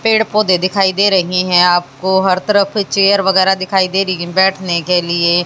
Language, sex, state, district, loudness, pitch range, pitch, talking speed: Hindi, female, Haryana, Jhajjar, -13 LUFS, 180-195 Hz, 190 Hz, 210 wpm